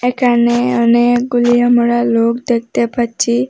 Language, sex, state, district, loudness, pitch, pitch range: Bengali, female, Assam, Hailakandi, -13 LUFS, 240 Hz, 235-245 Hz